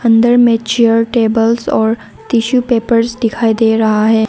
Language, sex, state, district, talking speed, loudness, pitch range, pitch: Hindi, female, Arunachal Pradesh, Lower Dibang Valley, 155 wpm, -12 LUFS, 225-235 Hz, 230 Hz